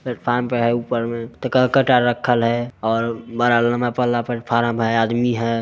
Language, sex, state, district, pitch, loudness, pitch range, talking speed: Hindi, male, Bihar, Muzaffarpur, 120 Hz, -19 LUFS, 115-120 Hz, 140 wpm